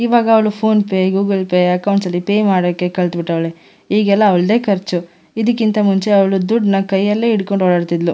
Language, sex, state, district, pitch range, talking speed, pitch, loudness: Kannada, female, Karnataka, Mysore, 180-210 Hz, 175 wpm, 195 Hz, -15 LUFS